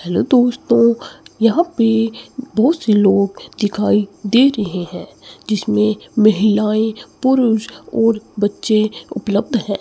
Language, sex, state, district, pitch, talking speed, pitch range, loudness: Hindi, male, Chandigarh, Chandigarh, 215 Hz, 110 wpm, 210-235 Hz, -16 LUFS